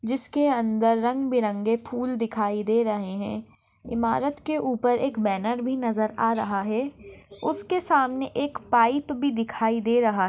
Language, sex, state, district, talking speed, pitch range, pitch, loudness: Hindi, female, Maharashtra, Sindhudurg, 150 wpm, 220-260 Hz, 235 Hz, -25 LUFS